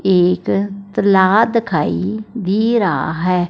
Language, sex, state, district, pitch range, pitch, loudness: Hindi, female, Punjab, Fazilka, 180-215 Hz, 195 Hz, -16 LUFS